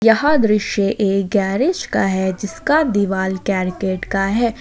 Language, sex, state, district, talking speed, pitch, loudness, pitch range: Hindi, female, Jharkhand, Ranchi, 145 wpm, 200 Hz, -18 LUFS, 190-225 Hz